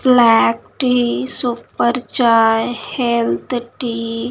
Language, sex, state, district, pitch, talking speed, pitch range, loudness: Hindi, female, Bihar, Saharsa, 235 Hz, 95 wpm, 225-245 Hz, -16 LUFS